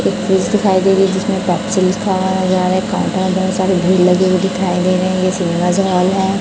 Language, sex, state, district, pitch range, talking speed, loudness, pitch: Hindi, female, Chhattisgarh, Raipur, 185-190 Hz, 140 wpm, -14 LUFS, 185 Hz